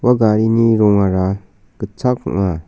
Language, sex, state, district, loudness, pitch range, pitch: Garo, male, Meghalaya, South Garo Hills, -15 LUFS, 95-115 Hz, 105 Hz